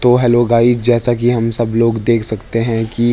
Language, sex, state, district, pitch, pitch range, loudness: Hindi, male, Uttarakhand, Tehri Garhwal, 115 Hz, 115-120 Hz, -14 LUFS